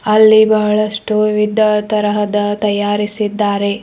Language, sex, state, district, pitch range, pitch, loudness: Kannada, female, Karnataka, Bidar, 210-215 Hz, 210 Hz, -14 LUFS